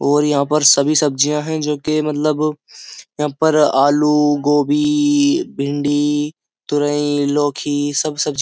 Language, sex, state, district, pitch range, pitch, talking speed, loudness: Hindi, male, Uttar Pradesh, Jyotiba Phule Nagar, 145-155 Hz, 150 Hz, 135 wpm, -16 LUFS